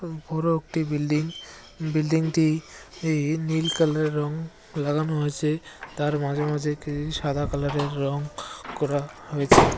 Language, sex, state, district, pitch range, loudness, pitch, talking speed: Bengali, male, West Bengal, Cooch Behar, 145-160 Hz, -26 LUFS, 150 Hz, 135 wpm